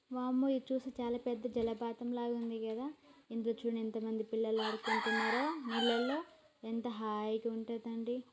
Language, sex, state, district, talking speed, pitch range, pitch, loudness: Telugu, female, Telangana, Nalgonda, 135 wpm, 225-250 Hz, 235 Hz, -37 LUFS